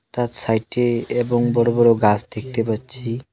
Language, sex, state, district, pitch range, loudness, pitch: Bengali, male, West Bengal, Alipurduar, 110-120 Hz, -19 LUFS, 120 Hz